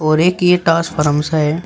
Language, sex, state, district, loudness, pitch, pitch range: Hindi, male, Uttar Pradesh, Shamli, -15 LUFS, 160 Hz, 150-175 Hz